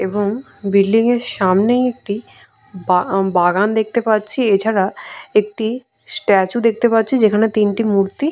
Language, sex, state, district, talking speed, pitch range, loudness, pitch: Bengali, female, West Bengal, Purulia, 120 wpm, 195-230 Hz, -16 LUFS, 215 Hz